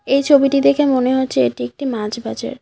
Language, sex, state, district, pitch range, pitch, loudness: Bengali, female, West Bengal, Cooch Behar, 215-275 Hz, 260 Hz, -16 LUFS